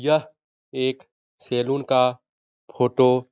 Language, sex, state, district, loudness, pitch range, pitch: Hindi, male, Bihar, Jahanabad, -22 LUFS, 125-140 Hz, 130 Hz